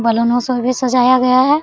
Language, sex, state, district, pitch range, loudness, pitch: Hindi, female, Jharkhand, Sahebganj, 245-255 Hz, -14 LUFS, 255 Hz